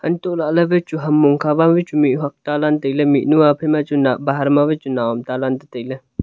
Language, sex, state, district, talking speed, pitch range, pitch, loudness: Wancho, male, Arunachal Pradesh, Longding, 270 wpm, 135-155 Hz, 145 Hz, -17 LUFS